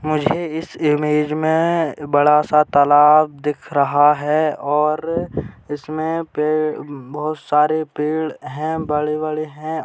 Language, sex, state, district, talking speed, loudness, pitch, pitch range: Hindi, male, Uttar Pradesh, Gorakhpur, 115 wpm, -18 LUFS, 150 Hz, 150-155 Hz